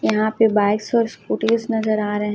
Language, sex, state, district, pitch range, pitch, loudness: Hindi, female, Chhattisgarh, Raipur, 210-225 Hz, 215 Hz, -19 LUFS